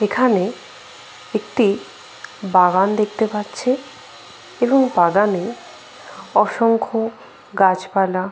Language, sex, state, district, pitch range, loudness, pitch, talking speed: Bengali, female, West Bengal, Paschim Medinipur, 190-230 Hz, -18 LUFS, 210 Hz, 65 wpm